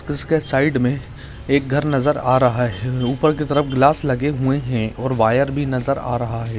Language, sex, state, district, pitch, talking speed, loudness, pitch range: Hindi, male, Bihar, Gaya, 135 Hz, 210 wpm, -19 LUFS, 125-145 Hz